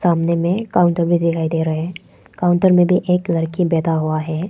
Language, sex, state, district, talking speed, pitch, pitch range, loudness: Hindi, female, Arunachal Pradesh, Papum Pare, 215 wpm, 170 Hz, 165-180 Hz, -17 LUFS